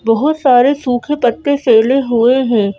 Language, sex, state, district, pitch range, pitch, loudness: Hindi, female, Madhya Pradesh, Bhopal, 230-275 Hz, 250 Hz, -12 LUFS